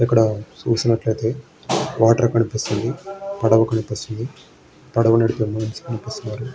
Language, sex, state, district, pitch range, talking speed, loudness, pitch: Telugu, male, Andhra Pradesh, Srikakulam, 110-120 Hz, 90 wpm, -20 LUFS, 115 Hz